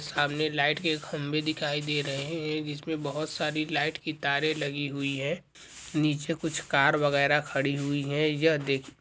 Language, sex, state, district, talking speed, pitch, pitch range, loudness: Hindi, male, Goa, North and South Goa, 180 wpm, 150 Hz, 140-155 Hz, -28 LUFS